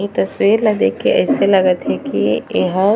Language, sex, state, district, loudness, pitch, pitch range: Chhattisgarhi, female, Chhattisgarh, Raigarh, -15 LUFS, 200 Hz, 185-205 Hz